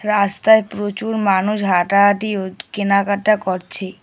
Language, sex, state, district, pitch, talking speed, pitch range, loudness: Bengali, male, West Bengal, Alipurduar, 200 Hz, 105 wpm, 190-210 Hz, -17 LUFS